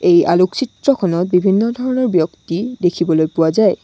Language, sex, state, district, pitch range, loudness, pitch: Assamese, female, Assam, Sonitpur, 175-250 Hz, -16 LUFS, 185 Hz